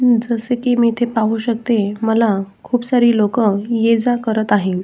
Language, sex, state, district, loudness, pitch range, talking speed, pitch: Marathi, female, Maharashtra, Sindhudurg, -16 LUFS, 215-240 Hz, 175 wpm, 230 Hz